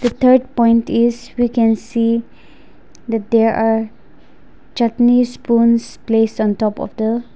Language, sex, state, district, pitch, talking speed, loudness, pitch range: English, female, Nagaland, Dimapur, 230 Hz, 130 wpm, -16 LUFS, 225-240 Hz